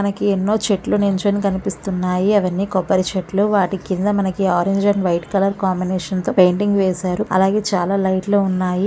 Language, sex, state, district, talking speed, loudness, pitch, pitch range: Telugu, female, Andhra Pradesh, Krishna, 170 wpm, -18 LUFS, 195 Hz, 185-200 Hz